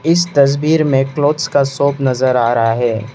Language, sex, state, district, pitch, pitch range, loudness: Hindi, male, Arunachal Pradesh, Lower Dibang Valley, 140 Hz, 125-150 Hz, -14 LUFS